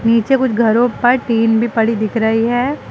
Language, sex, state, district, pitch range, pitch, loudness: Hindi, female, Uttar Pradesh, Lucknow, 225-245 Hz, 230 Hz, -14 LUFS